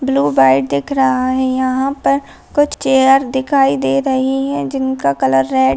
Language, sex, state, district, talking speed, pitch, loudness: Hindi, female, Bihar, Darbhanga, 165 wpm, 260 Hz, -15 LUFS